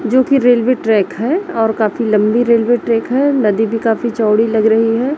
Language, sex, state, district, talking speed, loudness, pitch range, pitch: Hindi, female, Chhattisgarh, Raipur, 210 wpm, -14 LUFS, 220-250 Hz, 230 Hz